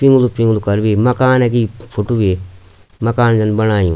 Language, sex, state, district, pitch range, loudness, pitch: Garhwali, male, Uttarakhand, Tehri Garhwal, 100-120 Hz, -14 LUFS, 110 Hz